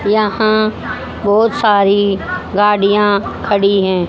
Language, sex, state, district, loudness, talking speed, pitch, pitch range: Hindi, female, Haryana, Jhajjar, -14 LUFS, 90 wpm, 205 Hz, 200-215 Hz